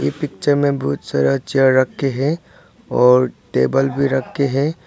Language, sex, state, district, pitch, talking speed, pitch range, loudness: Hindi, male, Arunachal Pradesh, Papum Pare, 135 Hz, 150 wpm, 125-140 Hz, -17 LUFS